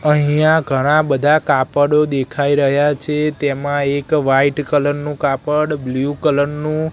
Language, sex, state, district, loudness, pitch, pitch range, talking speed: Gujarati, male, Gujarat, Gandhinagar, -16 LUFS, 145 Hz, 140-150 Hz, 140 wpm